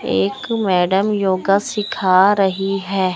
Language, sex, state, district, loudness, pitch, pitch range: Hindi, male, Chandigarh, Chandigarh, -17 LUFS, 195 Hz, 185-205 Hz